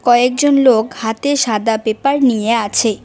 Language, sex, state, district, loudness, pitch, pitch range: Bengali, female, West Bengal, Cooch Behar, -14 LUFS, 230 Hz, 220-265 Hz